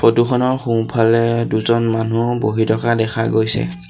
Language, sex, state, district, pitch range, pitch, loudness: Assamese, male, Assam, Sonitpur, 110-115 Hz, 115 Hz, -17 LUFS